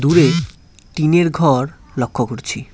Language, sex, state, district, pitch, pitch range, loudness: Bengali, male, West Bengal, Cooch Behar, 140 Hz, 120-165 Hz, -17 LUFS